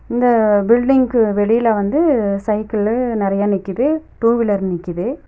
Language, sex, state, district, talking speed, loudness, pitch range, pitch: Tamil, female, Tamil Nadu, Nilgiris, 115 wpm, -16 LUFS, 200-240 Hz, 220 Hz